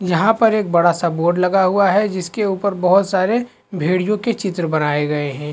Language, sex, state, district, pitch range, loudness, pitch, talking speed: Hindi, male, Chhattisgarh, Bastar, 170-205 Hz, -17 LUFS, 185 Hz, 215 wpm